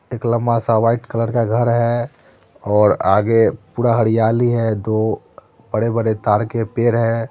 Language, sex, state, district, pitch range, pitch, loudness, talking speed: Hindi, male, Bihar, Muzaffarpur, 110-120 Hz, 115 Hz, -17 LUFS, 180 wpm